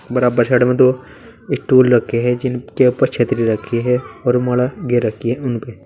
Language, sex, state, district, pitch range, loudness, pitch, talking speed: Hindi, male, Uttar Pradesh, Saharanpur, 120-130 Hz, -16 LUFS, 125 Hz, 185 wpm